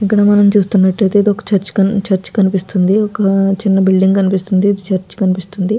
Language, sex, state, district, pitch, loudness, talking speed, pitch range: Telugu, female, Andhra Pradesh, Guntur, 195 Hz, -13 LUFS, 145 wpm, 190-205 Hz